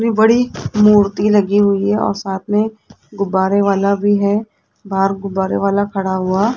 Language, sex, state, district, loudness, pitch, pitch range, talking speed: Hindi, female, Rajasthan, Jaipur, -15 LUFS, 200 Hz, 195-210 Hz, 165 wpm